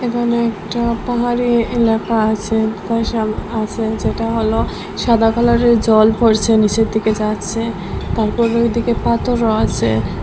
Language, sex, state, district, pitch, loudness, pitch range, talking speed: Bengali, female, Assam, Hailakandi, 225 Hz, -16 LUFS, 220-235 Hz, 115 wpm